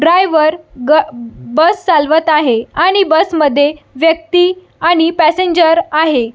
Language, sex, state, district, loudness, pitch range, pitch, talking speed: Marathi, female, Maharashtra, Solapur, -12 LUFS, 300-345 Hz, 320 Hz, 105 wpm